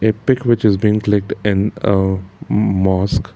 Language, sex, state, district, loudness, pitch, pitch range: English, male, Karnataka, Bangalore, -16 LUFS, 105 Hz, 95-110 Hz